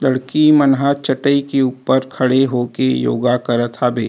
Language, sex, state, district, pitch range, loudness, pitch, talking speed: Chhattisgarhi, male, Chhattisgarh, Rajnandgaon, 120-140 Hz, -16 LUFS, 130 Hz, 160 wpm